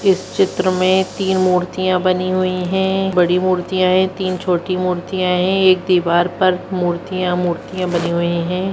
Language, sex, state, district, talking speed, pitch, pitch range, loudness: Hindi, male, Bihar, Purnia, 160 wpm, 185 Hz, 180-185 Hz, -17 LUFS